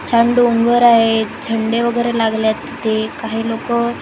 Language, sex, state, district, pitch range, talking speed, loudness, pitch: Marathi, female, Maharashtra, Gondia, 225-235 Hz, 165 wpm, -15 LUFS, 230 Hz